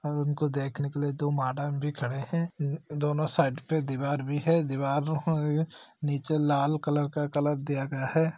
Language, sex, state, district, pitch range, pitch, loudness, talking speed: Hindi, male, Chhattisgarh, Bastar, 140-155 Hz, 145 Hz, -29 LUFS, 185 wpm